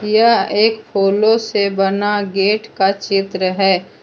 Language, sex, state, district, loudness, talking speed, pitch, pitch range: Hindi, female, Jharkhand, Deoghar, -15 LUFS, 135 wpm, 200 Hz, 195-215 Hz